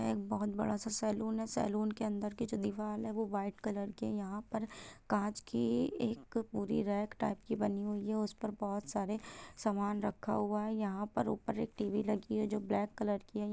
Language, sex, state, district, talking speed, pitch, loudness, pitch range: Hindi, female, Bihar, Gopalganj, 215 wpm, 210 Hz, -37 LUFS, 205-220 Hz